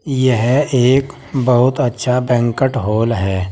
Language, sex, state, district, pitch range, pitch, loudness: Hindi, male, Uttar Pradesh, Saharanpur, 115-130 Hz, 125 Hz, -15 LUFS